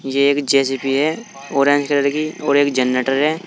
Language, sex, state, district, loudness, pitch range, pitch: Hindi, male, Uttar Pradesh, Saharanpur, -17 LUFS, 135-145 Hz, 140 Hz